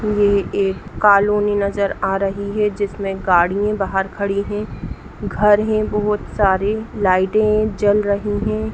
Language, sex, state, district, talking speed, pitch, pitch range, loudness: Hindi, female, Bihar, Saran, 135 wpm, 205 Hz, 195-210 Hz, -18 LUFS